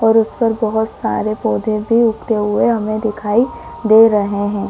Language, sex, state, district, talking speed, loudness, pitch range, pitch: Hindi, female, Chhattisgarh, Korba, 180 wpm, -16 LUFS, 210-225 Hz, 220 Hz